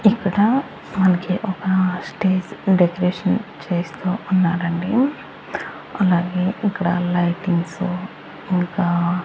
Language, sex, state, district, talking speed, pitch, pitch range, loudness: Telugu, male, Andhra Pradesh, Annamaya, 80 wpm, 185 Hz, 175-195 Hz, -20 LUFS